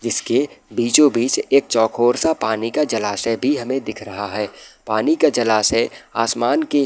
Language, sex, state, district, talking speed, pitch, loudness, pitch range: Hindi, male, Bihar, Madhepura, 185 wpm, 115 Hz, -18 LUFS, 110-130 Hz